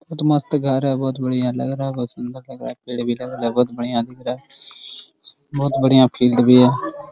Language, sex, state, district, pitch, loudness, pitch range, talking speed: Hindi, male, Bihar, Araria, 130 Hz, -19 LUFS, 125-135 Hz, 245 wpm